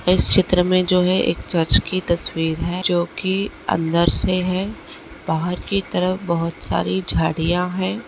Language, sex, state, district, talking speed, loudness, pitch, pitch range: Hindi, female, Chhattisgarh, Kabirdham, 165 wpm, -18 LUFS, 180 Hz, 165-185 Hz